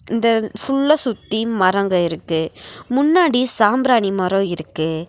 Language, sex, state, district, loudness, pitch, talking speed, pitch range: Tamil, female, Tamil Nadu, Nilgiris, -18 LUFS, 215 Hz, 105 wpm, 185-250 Hz